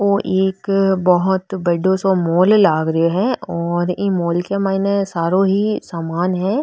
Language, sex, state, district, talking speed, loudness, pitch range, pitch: Marwari, female, Rajasthan, Nagaur, 155 wpm, -17 LUFS, 175-195 Hz, 190 Hz